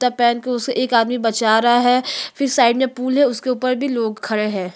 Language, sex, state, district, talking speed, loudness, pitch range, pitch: Hindi, female, Chhattisgarh, Sukma, 250 wpm, -18 LUFS, 230-255 Hz, 245 Hz